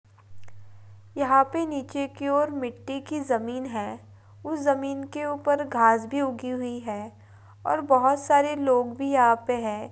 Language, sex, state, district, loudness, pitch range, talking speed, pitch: Hindi, female, Bihar, Madhepura, -25 LUFS, 210-280 Hz, 155 wpm, 255 Hz